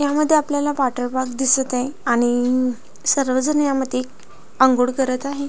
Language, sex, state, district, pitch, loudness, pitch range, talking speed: Marathi, female, Maharashtra, Pune, 260 Hz, -19 LUFS, 255-280 Hz, 155 wpm